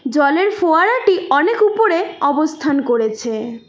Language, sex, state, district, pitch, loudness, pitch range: Bengali, female, West Bengal, Cooch Behar, 305 Hz, -16 LUFS, 270-385 Hz